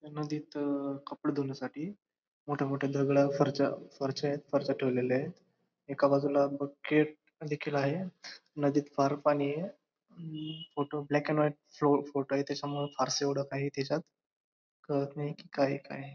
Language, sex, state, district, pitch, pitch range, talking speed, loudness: Marathi, male, Maharashtra, Dhule, 145 Hz, 140-150 Hz, 135 wpm, -32 LUFS